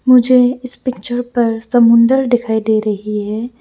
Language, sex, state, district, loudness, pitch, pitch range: Hindi, female, Arunachal Pradesh, Lower Dibang Valley, -14 LUFS, 240 Hz, 220-250 Hz